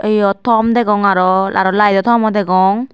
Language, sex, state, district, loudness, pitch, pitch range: Chakma, female, Tripura, Dhalai, -13 LUFS, 205 Hz, 195-220 Hz